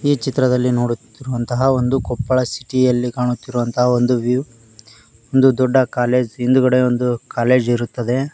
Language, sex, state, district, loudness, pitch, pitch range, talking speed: Kannada, male, Karnataka, Koppal, -17 LUFS, 125 Hz, 120-130 Hz, 115 wpm